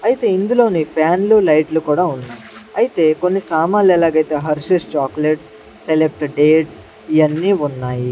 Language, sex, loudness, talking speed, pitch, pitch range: Telugu, male, -15 LUFS, 120 wpm, 155 Hz, 145-180 Hz